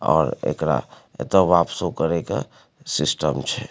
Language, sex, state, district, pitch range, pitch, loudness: Maithili, male, Bihar, Supaul, 85-95 Hz, 85 Hz, -22 LUFS